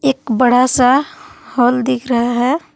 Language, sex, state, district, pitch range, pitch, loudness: Hindi, female, Jharkhand, Palamu, 245-265 Hz, 255 Hz, -14 LUFS